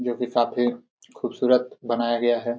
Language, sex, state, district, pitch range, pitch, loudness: Hindi, male, Jharkhand, Jamtara, 120-125 Hz, 120 Hz, -24 LUFS